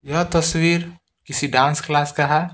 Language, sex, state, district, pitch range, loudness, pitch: Hindi, male, Bihar, Patna, 145-170 Hz, -19 LUFS, 150 Hz